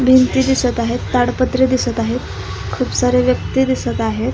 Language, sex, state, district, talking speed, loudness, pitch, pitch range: Marathi, female, Maharashtra, Solapur, 150 wpm, -17 LUFS, 255 Hz, 245-260 Hz